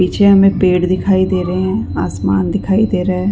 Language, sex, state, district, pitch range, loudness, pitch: Hindi, female, Chhattisgarh, Rajnandgaon, 180-195 Hz, -14 LUFS, 185 Hz